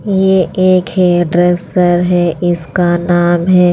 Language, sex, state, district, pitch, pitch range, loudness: Hindi, female, Himachal Pradesh, Shimla, 175 Hz, 175-180 Hz, -12 LUFS